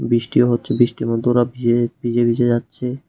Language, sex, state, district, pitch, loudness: Bengali, male, Tripura, West Tripura, 120 Hz, -18 LUFS